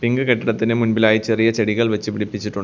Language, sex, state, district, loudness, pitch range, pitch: Malayalam, male, Kerala, Kollam, -18 LUFS, 105-115 Hz, 110 Hz